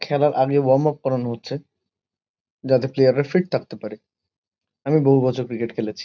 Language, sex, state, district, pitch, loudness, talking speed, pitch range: Bengali, male, West Bengal, Kolkata, 135 Hz, -20 LUFS, 170 wpm, 130-145 Hz